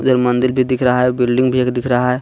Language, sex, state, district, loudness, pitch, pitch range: Hindi, male, Jharkhand, Garhwa, -15 LUFS, 125 Hz, 125-130 Hz